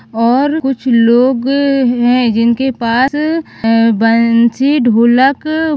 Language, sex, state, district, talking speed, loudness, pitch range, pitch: Hindi, female, Maharashtra, Dhule, 95 wpm, -11 LUFS, 230-275 Hz, 250 Hz